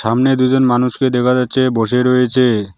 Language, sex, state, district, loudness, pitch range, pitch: Bengali, male, West Bengal, Alipurduar, -14 LUFS, 120-130 Hz, 125 Hz